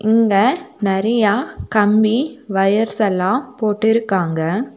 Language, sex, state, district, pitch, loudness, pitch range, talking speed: Tamil, female, Tamil Nadu, Nilgiris, 215 Hz, -17 LUFS, 200-235 Hz, 75 wpm